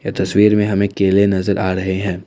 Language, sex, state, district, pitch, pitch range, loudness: Hindi, male, Assam, Kamrup Metropolitan, 100 Hz, 95-100 Hz, -16 LUFS